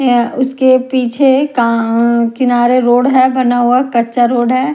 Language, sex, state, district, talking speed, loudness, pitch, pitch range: Hindi, female, Odisha, Nuapada, 150 wpm, -12 LUFS, 250 Hz, 240-260 Hz